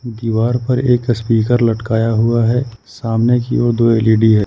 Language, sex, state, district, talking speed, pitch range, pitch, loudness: Hindi, male, Jharkhand, Ranchi, 200 wpm, 115-120 Hz, 115 Hz, -15 LUFS